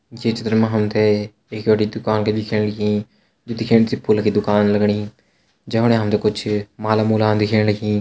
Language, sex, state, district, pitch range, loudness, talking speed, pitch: Hindi, male, Uttarakhand, Tehri Garhwal, 105-110 Hz, -18 LUFS, 170 wpm, 105 Hz